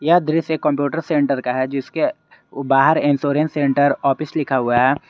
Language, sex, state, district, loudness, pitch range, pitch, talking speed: Hindi, male, Jharkhand, Garhwa, -18 LUFS, 135-155 Hz, 145 Hz, 175 wpm